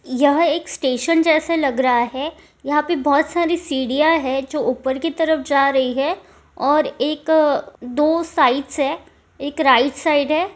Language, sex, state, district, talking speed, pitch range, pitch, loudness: Hindi, female, Bihar, Supaul, 165 wpm, 270-320 Hz, 295 Hz, -18 LUFS